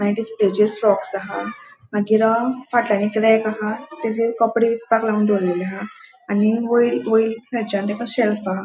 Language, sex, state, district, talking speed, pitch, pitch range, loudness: Konkani, female, Goa, North and South Goa, 150 wpm, 220 Hz, 205-230 Hz, -20 LUFS